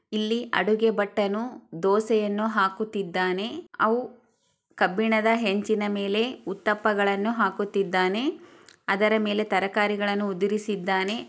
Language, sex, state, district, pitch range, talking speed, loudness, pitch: Kannada, female, Karnataka, Chamarajanagar, 200-225 Hz, 100 wpm, -25 LUFS, 210 Hz